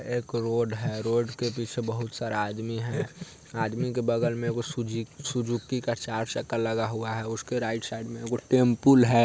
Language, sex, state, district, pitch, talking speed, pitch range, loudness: Hindi, male, Bihar, Sitamarhi, 115 Hz, 190 wpm, 115-125 Hz, -28 LUFS